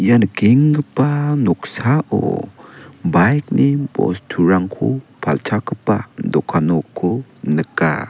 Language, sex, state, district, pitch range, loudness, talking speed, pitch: Garo, male, Meghalaya, South Garo Hills, 105-145 Hz, -17 LUFS, 65 wpm, 135 Hz